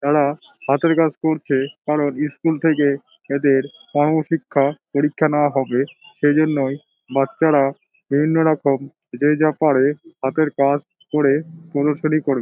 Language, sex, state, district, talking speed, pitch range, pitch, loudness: Bengali, male, West Bengal, Dakshin Dinajpur, 110 wpm, 140-155 Hz, 150 Hz, -19 LUFS